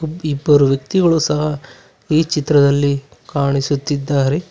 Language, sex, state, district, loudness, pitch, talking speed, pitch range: Kannada, male, Karnataka, Bangalore, -16 LUFS, 145 Hz, 80 wpm, 140-150 Hz